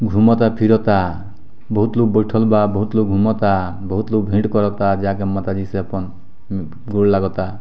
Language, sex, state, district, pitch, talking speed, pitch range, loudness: Bhojpuri, male, Bihar, Muzaffarpur, 100 Hz, 160 wpm, 95-110 Hz, -17 LUFS